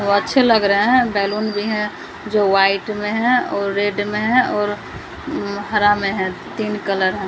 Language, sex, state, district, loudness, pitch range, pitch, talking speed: Hindi, female, Bihar, Patna, -18 LUFS, 200-215 Hz, 205 Hz, 200 wpm